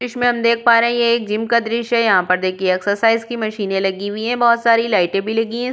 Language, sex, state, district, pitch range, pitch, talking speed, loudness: Hindi, female, Uttar Pradesh, Budaun, 205-235 Hz, 230 Hz, 295 wpm, -17 LUFS